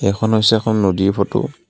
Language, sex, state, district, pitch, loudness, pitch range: Assamese, male, Assam, Kamrup Metropolitan, 110 Hz, -16 LUFS, 100-120 Hz